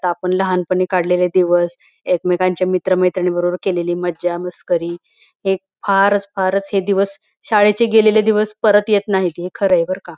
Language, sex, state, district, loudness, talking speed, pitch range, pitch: Marathi, female, Maharashtra, Pune, -17 LUFS, 165 wpm, 180-200 Hz, 185 Hz